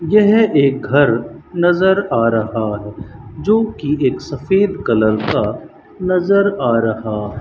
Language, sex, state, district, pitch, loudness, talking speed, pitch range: Hindi, male, Rajasthan, Bikaner, 140 Hz, -16 LUFS, 130 wpm, 110-185 Hz